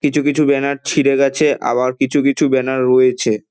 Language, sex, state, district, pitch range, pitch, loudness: Bengali, male, West Bengal, Dakshin Dinajpur, 130-145 Hz, 135 Hz, -15 LUFS